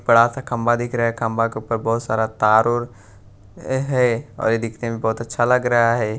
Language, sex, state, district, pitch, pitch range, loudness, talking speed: Hindi, male, Bihar, West Champaran, 115 Hz, 110-120 Hz, -20 LUFS, 215 wpm